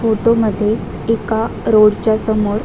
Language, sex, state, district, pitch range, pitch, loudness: Marathi, female, Maharashtra, Dhule, 210-225 Hz, 220 Hz, -15 LUFS